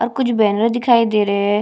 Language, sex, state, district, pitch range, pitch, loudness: Hindi, female, Chhattisgarh, Jashpur, 210-235 Hz, 225 Hz, -16 LUFS